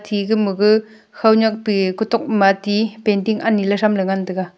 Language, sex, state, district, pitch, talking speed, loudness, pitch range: Wancho, female, Arunachal Pradesh, Longding, 210 Hz, 170 wpm, -17 LUFS, 195-220 Hz